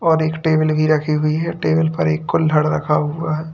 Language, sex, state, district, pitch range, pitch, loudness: Hindi, male, Uttar Pradesh, Lalitpur, 150-160 Hz, 155 Hz, -18 LUFS